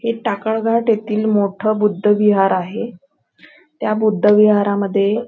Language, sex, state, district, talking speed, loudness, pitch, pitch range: Marathi, female, Maharashtra, Nagpur, 135 wpm, -16 LUFS, 210 Hz, 200-220 Hz